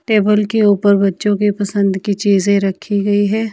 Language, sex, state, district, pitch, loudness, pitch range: Hindi, female, Himachal Pradesh, Shimla, 205 Hz, -15 LUFS, 200-210 Hz